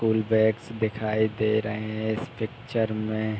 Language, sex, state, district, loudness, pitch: Hindi, male, Uttar Pradesh, Hamirpur, -26 LUFS, 110 Hz